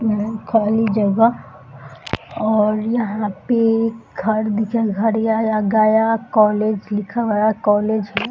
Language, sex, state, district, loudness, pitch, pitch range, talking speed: Hindi, female, Bihar, Gaya, -18 LUFS, 215 Hz, 210-225 Hz, 100 wpm